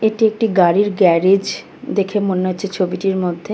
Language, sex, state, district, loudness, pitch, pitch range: Bengali, female, West Bengal, Kolkata, -16 LUFS, 195 Hz, 185-205 Hz